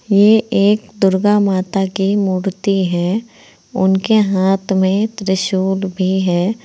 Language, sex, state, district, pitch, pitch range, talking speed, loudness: Hindi, female, Uttar Pradesh, Saharanpur, 195 Hz, 190-205 Hz, 115 wpm, -15 LUFS